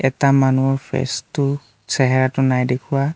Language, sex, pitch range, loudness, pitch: Assamese, male, 130-140 Hz, -18 LUFS, 135 Hz